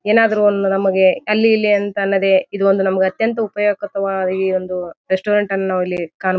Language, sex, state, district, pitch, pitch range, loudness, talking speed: Kannada, female, Karnataka, Bijapur, 195 Hz, 190-210 Hz, -17 LUFS, 180 wpm